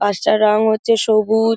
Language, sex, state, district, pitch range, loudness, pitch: Bengali, female, West Bengal, Dakshin Dinajpur, 215-225 Hz, -15 LUFS, 220 Hz